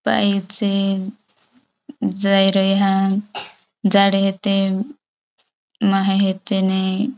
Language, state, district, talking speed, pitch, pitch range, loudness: Bhili, Maharashtra, Dhule, 90 wpm, 195 Hz, 195-210 Hz, -18 LUFS